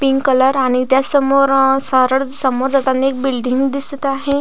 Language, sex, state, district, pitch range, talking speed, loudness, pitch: Marathi, female, Maharashtra, Pune, 260-275 Hz, 175 wpm, -15 LUFS, 270 Hz